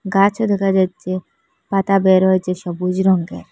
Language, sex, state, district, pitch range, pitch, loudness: Bengali, female, Assam, Hailakandi, 185-195 Hz, 190 Hz, -17 LUFS